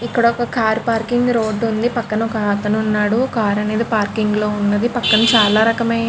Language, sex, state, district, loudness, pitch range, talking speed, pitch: Telugu, female, Andhra Pradesh, Krishna, -17 LUFS, 215-235 Hz, 185 wpm, 225 Hz